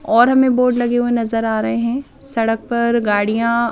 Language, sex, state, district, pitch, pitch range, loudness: Hindi, female, Madhya Pradesh, Bhopal, 235 Hz, 225-245 Hz, -17 LUFS